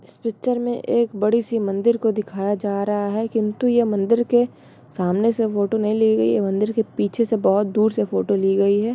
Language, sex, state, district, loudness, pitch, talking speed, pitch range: Hindi, female, Bihar, Samastipur, -20 LUFS, 215 Hz, 220 wpm, 200-230 Hz